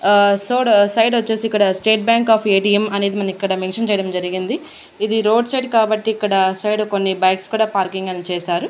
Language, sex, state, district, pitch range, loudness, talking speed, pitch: Telugu, female, Andhra Pradesh, Annamaya, 190-220 Hz, -17 LUFS, 195 wpm, 205 Hz